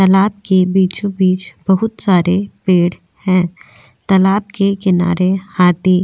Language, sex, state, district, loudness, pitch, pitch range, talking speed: Hindi, female, Goa, North and South Goa, -15 LUFS, 185 Hz, 180-195 Hz, 120 wpm